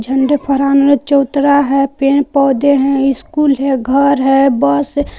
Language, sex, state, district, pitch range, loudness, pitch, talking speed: Hindi, female, Jharkhand, Palamu, 275-285 Hz, -12 LUFS, 275 Hz, 160 wpm